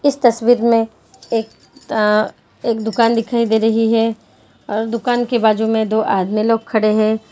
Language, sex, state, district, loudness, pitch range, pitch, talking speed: Hindi, female, Jharkhand, Jamtara, -16 LUFS, 220-230 Hz, 225 Hz, 165 wpm